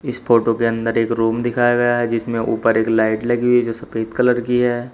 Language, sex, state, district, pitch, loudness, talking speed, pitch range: Hindi, male, Uttar Pradesh, Shamli, 115 Hz, -18 LUFS, 240 wpm, 115-120 Hz